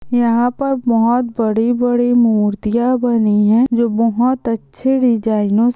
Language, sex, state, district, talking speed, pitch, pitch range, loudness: Hindi, female, Andhra Pradesh, Chittoor, 135 wpm, 235 Hz, 225-245 Hz, -15 LUFS